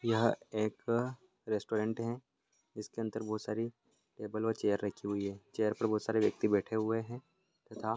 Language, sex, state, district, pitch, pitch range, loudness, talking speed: Hindi, male, Bihar, Sitamarhi, 110 Hz, 105-115 Hz, -35 LUFS, 190 wpm